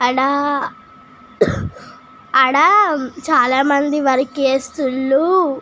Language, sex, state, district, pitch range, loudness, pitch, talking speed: Telugu, female, Telangana, Nalgonda, 265-305 Hz, -16 LUFS, 275 Hz, 65 wpm